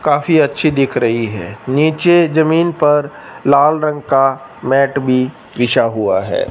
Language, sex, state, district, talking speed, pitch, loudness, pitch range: Hindi, male, Punjab, Fazilka, 145 wpm, 140 Hz, -14 LUFS, 130-155 Hz